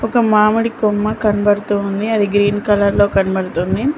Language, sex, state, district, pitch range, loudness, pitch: Telugu, female, Telangana, Mahabubabad, 205-215 Hz, -15 LUFS, 205 Hz